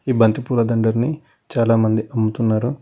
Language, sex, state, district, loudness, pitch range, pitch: Telugu, male, Telangana, Hyderabad, -19 LUFS, 110-125 Hz, 115 Hz